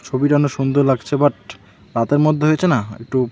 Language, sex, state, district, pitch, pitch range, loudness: Bengali, male, West Bengal, Alipurduar, 140 Hz, 125-145 Hz, -17 LUFS